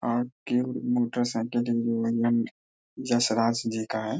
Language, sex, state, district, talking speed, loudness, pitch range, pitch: Hindi, male, Bihar, Darbhanga, 100 wpm, -27 LUFS, 115-120 Hz, 115 Hz